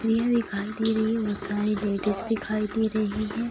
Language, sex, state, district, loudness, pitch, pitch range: Hindi, female, Bihar, Sitamarhi, -26 LUFS, 215 Hz, 210-225 Hz